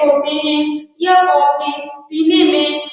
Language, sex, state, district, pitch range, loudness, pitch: Hindi, female, Bihar, Saran, 285-320 Hz, -13 LUFS, 300 Hz